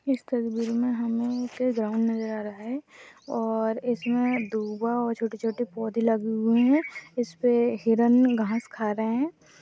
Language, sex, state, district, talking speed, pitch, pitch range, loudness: Hindi, female, Bihar, Madhepura, 160 wpm, 230 Hz, 225-245 Hz, -26 LUFS